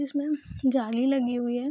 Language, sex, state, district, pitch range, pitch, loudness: Hindi, female, Bihar, Saharsa, 245-285 Hz, 265 Hz, -27 LUFS